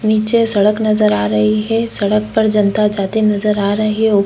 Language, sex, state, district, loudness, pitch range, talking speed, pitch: Hindi, female, Chhattisgarh, Korba, -14 LUFS, 205-215 Hz, 210 wpm, 210 Hz